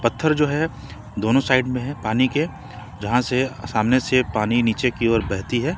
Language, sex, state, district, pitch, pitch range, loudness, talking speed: Hindi, male, Jharkhand, Ranchi, 125 Hz, 110-130 Hz, -21 LUFS, 195 wpm